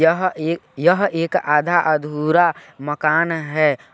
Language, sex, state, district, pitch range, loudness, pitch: Hindi, male, Chhattisgarh, Balrampur, 150-175 Hz, -18 LUFS, 160 Hz